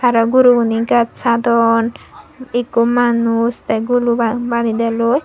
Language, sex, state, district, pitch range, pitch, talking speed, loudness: Chakma, female, Tripura, Dhalai, 230-245 Hz, 235 Hz, 125 wpm, -15 LUFS